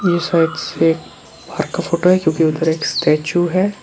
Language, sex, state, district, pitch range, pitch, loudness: Hindi, male, Arunachal Pradesh, Lower Dibang Valley, 160-175 Hz, 170 Hz, -17 LUFS